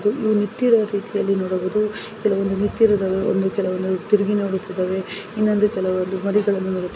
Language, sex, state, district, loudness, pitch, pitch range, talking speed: Kannada, female, Karnataka, Raichur, -21 LUFS, 200 Hz, 190-210 Hz, 45 wpm